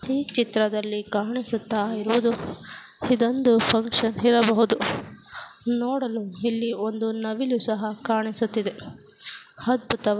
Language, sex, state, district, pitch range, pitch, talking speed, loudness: Kannada, female, Karnataka, Gulbarga, 220-240 Hz, 225 Hz, 90 wpm, -24 LUFS